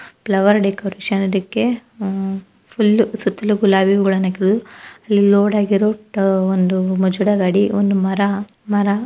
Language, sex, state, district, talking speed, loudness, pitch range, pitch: Kannada, female, Karnataka, Dharwad, 95 wpm, -17 LUFS, 195-210 Hz, 200 Hz